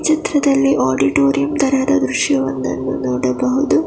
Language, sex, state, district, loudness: Kannada, female, Karnataka, Bangalore, -16 LUFS